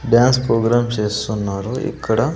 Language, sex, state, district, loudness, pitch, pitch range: Telugu, male, Andhra Pradesh, Sri Satya Sai, -18 LUFS, 115 Hz, 105-125 Hz